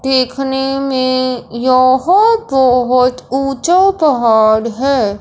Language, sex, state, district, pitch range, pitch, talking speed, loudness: Hindi, male, Punjab, Fazilka, 250-275 Hz, 260 Hz, 80 wpm, -13 LUFS